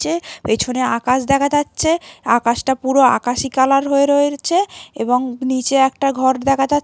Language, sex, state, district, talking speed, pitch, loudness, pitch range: Bengali, female, West Bengal, Kolkata, 140 wpm, 270 Hz, -17 LUFS, 255-285 Hz